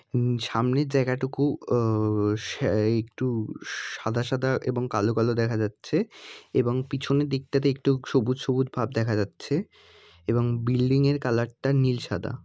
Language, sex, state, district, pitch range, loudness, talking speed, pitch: Bengali, female, West Bengal, Jalpaiguri, 115-135 Hz, -26 LUFS, 140 wpm, 125 Hz